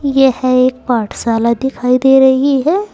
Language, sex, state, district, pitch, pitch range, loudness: Hindi, female, Uttar Pradesh, Saharanpur, 260 Hz, 250-270 Hz, -12 LUFS